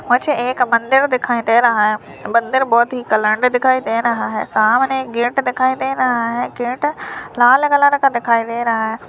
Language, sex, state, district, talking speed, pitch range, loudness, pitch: Hindi, male, Uttarakhand, Uttarkashi, 200 wpm, 235-260 Hz, -16 LUFS, 245 Hz